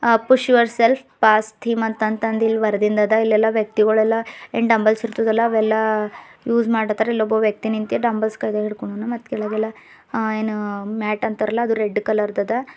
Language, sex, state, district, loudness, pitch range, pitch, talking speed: Kannada, female, Karnataka, Bidar, -19 LUFS, 215-230 Hz, 220 Hz, 175 wpm